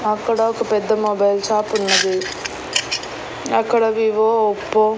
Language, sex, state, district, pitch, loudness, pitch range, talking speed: Telugu, female, Andhra Pradesh, Annamaya, 215 Hz, -18 LUFS, 205-220 Hz, 120 wpm